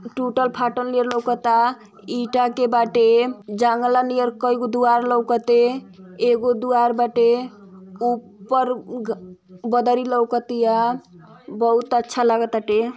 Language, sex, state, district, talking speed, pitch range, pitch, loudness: Bhojpuri, female, Uttar Pradesh, Ghazipur, 105 wpm, 230-245 Hz, 240 Hz, -20 LUFS